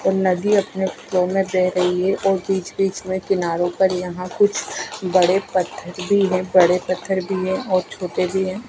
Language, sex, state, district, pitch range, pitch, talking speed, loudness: Hindi, female, Punjab, Fazilka, 180-195 Hz, 185 Hz, 195 wpm, -20 LUFS